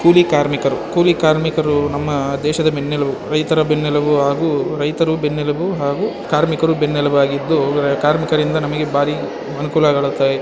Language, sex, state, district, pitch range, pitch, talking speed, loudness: Kannada, female, Karnataka, Bellary, 145-160 Hz, 150 Hz, 120 wpm, -17 LUFS